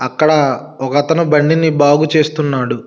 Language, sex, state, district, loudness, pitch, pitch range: Telugu, male, Telangana, Hyderabad, -13 LUFS, 150 Hz, 135-155 Hz